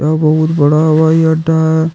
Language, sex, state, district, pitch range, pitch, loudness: Hindi, male, Jharkhand, Deoghar, 155-160 Hz, 160 Hz, -11 LUFS